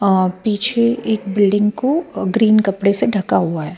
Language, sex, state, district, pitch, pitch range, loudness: Hindi, female, Bihar, Patna, 205 Hz, 195-225 Hz, -16 LUFS